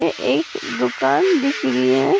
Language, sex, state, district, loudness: Hindi, female, Uttar Pradesh, Hamirpur, -19 LUFS